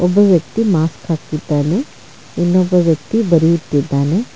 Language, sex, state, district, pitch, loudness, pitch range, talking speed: Kannada, female, Karnataka, Bangalore, 165 Hz, -15 LUFS, 155-185 Hz, 95 wpm